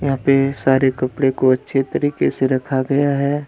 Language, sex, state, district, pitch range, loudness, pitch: Hindi, male, Jharkhand, Deoghar, 130-140 Hz, -18 LUFS, 135 Hz